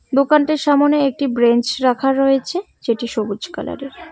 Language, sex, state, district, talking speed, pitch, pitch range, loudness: Bengali, female, West Bengal, Cooch Behar, 145 wpm, 270 Hz, 240-290 Hz, -17 LUFS